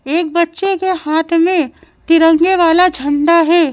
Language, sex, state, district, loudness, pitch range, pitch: Hindi, female, Madhya Pradesh, Bhopal, -13 LUFS, 325-345 Hz, 335 Hz